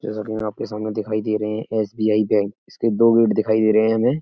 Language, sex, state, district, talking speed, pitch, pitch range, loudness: Hindi, male, Uttar Pradesh, Etah, 285 wpm, 110 Hz, 105-110 Hz, -20 LUFS